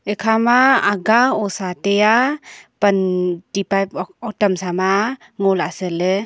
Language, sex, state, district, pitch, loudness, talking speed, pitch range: Wancho, female, Arunachal Pradesh, Longding, 200 Hz, -17 LUFS, 165 wpm, 185-220 Hz